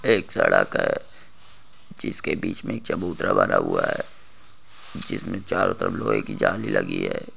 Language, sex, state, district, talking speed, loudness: Hindi, male, Jharkhand, Jamtara, 155 wpm, -24 LUFS